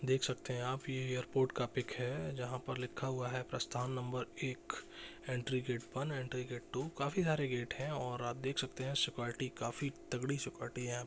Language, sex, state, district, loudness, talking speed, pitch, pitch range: Hindi, male, Bihar, Jahanabad, -39 LUFS, 210 wpm, 130 Hz, 125-135 Hz